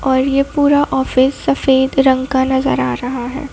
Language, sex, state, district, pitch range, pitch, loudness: Hindi, female, Madhya Pradesh, Bhopal, 260-275 Hz, 265 Hz, -15 LUFS